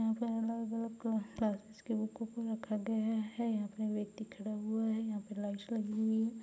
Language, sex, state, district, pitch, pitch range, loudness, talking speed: Hindi, female, Chhattisgarh, Raigarh, 220 Hz, 215-225 Hz, -38 LUFS, 215 wpm